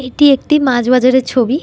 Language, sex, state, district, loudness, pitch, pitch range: Bengali, female, West Bengal, North 24 Parganas, -12 LUFS, 260 Hz, 255-280 Hz